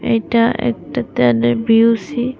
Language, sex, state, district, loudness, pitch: Bengali, female, Tripura, West Tripura, -15 LUFS, 225 Hz